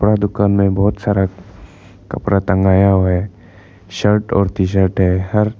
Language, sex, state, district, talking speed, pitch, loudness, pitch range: Hindi, male, Arunachal Pradesh, Lower Dibang Valley, 150 wpm, 100 Hz, -15 LUFS, 95-105 Hz